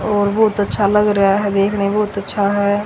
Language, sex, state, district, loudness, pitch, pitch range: Hindi, female, Haryana, Rohtak, -16 LUFS, 205 Hz, 200-210 Hz